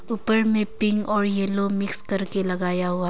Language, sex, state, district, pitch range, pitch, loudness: Hindi, female, Arunachal Pradesh, Longding, 195-210 Hz, 200 Hz, -22 LUFS